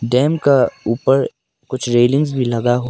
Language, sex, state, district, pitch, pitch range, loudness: Hindi, male, Arunachal Pradesh, Papum Pare, 125 Hz, 120-135 Hz, -16 LUFS